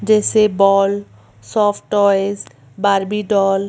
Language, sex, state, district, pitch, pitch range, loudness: Hindi, female, Madhya Pradesh, Bhopal, 200 Hz, 195-210 Hz, -16 LUFS